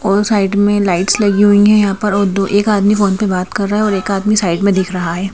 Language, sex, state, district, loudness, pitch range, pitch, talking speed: Hindi, female, Madhya Pradesh, Bhopal, -13 LUFS, 195-205 Hz, 200 Hz, 305 wpm